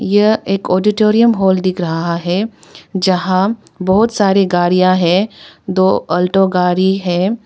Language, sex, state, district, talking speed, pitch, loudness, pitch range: Hindi, female, Arunachal Pradesh, Papum Pare, 130 wpm, 190 Hz, -14 LUFS, 180-200 Hz